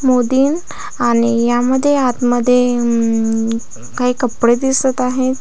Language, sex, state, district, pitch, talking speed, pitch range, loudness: Marathi, female, Maharashtra, Aurangabad, 250 Hz, 90 wpm, 235-260 Hz, -15 LUFS